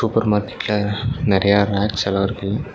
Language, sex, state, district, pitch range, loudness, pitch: Tamil, male, Tamil Nadu, Nilgiris, 100-115 Hz, -19 LUFS, 105 Hz